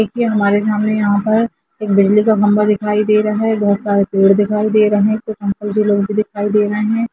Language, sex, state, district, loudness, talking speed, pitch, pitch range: Hindi, female, Jharkhand, Jamtara, -15 LUFS, 195 wpm, 210 Hz, 205-215 Hz